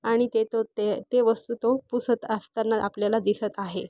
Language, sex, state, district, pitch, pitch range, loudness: Marathi, female, Maharashtra, Aurangabad, 225 Hz, 210-235 Hz, -26 LUFS